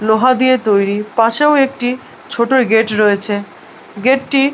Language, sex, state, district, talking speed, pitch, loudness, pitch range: Bengali, female, West Bengal, Malda, 130 wpm, 235 Hz, -14 LUFS, 210-260 Hz